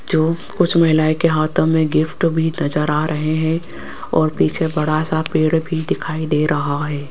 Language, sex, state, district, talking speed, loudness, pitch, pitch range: Hindi, female, Rajasthan, Jaipur, 185 wpm, -18 LUFS, 160 Hz, 155-160 Hz